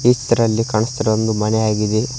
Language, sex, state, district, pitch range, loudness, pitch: Kannada, male, Karnataka, Koppal, 110-115 Hz, -17 LUFS, 110 Hz